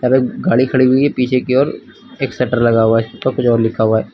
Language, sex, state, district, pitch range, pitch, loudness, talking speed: Hindi, male, Uttar Pradesh, Lucknow, 115-130 Hz, 125 Hz, -15 LUFS, 245 wpm